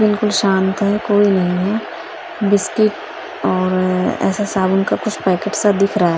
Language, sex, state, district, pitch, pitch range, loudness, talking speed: Hindi, female, Maharashtra, Mumbai Suburban, 200 Hz, 185-210 Hz, -16 LUFS, 155 wpm